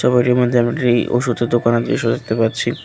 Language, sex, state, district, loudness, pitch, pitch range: Bengali, male, Tripura, West Tripura, -17 LUFS, 120 Hz, 120-125 Hz